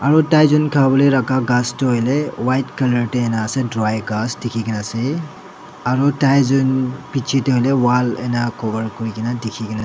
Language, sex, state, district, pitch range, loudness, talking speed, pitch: Nagamese, male, Nagaland, Dimapur, 115-135 Hz, -18 LUFS, 150 wpm, 125 Hz